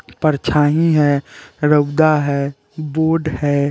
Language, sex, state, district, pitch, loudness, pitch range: Hindi, male, Chandigarh, Chandigarh, 150 Hz, -16 LUFS, 140-155 Hz